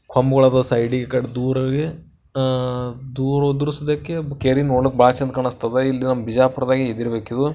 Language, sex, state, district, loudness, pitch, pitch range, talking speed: Kannada, male, Karnataka, Bijapur, -20 LUFS, 130 Hz, 125-135 Hz, 135 wpm